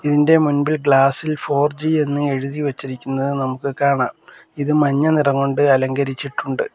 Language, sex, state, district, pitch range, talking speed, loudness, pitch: Malayalam, male, Kerala, Kollam, 135-150 Hz, 140 wpm, -18 LUFS, 140 Hz